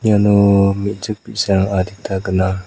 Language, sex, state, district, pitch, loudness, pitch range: Garo, male, Meghalaya, South Garo Hills, 100 Hz, -16 LUFS, 95-105 Hz